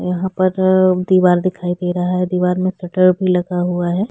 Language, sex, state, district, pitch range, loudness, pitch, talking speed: Hindi, female, Chhattisgarh, Sukma, 180-185 Hz, -16 LUFS, 180 Hz, 205 wpm